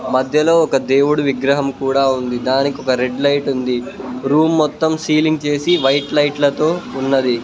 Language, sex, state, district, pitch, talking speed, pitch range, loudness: Telugu, male, Telangana, Mahabubabad, 140 Hz, 155 wpm, 130-150 Hz, -16 LUFS